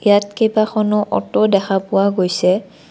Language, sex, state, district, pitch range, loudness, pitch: Assamese, female, Assam, Kamrup Metropolitan, 195-215 Hz, -16 LUFS, 205 Hz